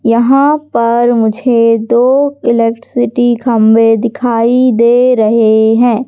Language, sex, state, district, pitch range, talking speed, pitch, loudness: Hindi, female, Madhya Pradesh, Katni, 230-250 Hz, 100 wpm, 235 Hz, -10 LUFS